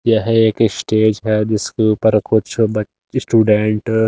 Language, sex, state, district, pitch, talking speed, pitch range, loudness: Hindi, male, Delhi, New Delhi, 110 Hz, 145 wpm, 105-110 Hz, -15 LUFS